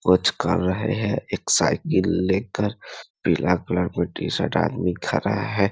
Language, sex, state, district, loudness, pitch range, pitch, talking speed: Hindi, male, Bihar, Muzaffarpur, -23 LUFS, 90-105 Hz, 95 Hz, 145 wpm